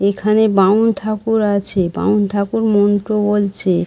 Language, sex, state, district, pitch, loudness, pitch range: Bengali, female, West Bengal, Dakshin Dinajpur, 205 Hz, -15 LUFS, 200-215 Hz